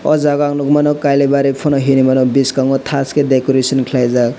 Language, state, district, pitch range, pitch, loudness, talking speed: Kokborok, Tripura, West Tripura, 130-145 Hz, 135 Hz, -13 LUFS, 190 wpm